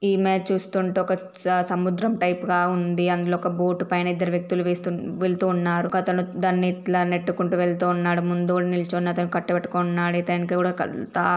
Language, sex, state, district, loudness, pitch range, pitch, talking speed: Telugu, female, Andhra Pradesh, Srikakulam, -23 LUFS, 175-185 Hz, 180 Hz, 185 wpm